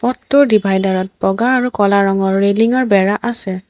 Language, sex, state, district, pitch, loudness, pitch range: Assamese, female, Assam, Sonitpur, 200 Hz, -14 LUFS, 195-245 Hz